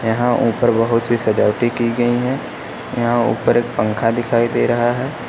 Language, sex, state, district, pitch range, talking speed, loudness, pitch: Hindi, male, Uttar Pradesh, Lucknow, 115-120 Hz, 180 wpm, -17 LUFS, 120 Hz